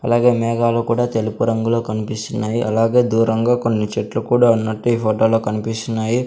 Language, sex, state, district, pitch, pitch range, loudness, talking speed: Telugu, male, Andhra Pradesh, Sri Satya Sai, 115 Hz, 110-120 Hz, -18 LUFS, 145 wpm